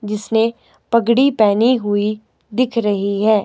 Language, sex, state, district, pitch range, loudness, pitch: Hindi, male, Himachal Pradesh, Shimla, 205-235 Hz, -17 LUFS, 215 Hz